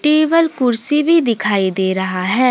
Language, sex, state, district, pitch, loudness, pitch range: Hindi, female, Jharkhand, Deoghar, 245 Hz, -14 LUFS, 190-300 Hz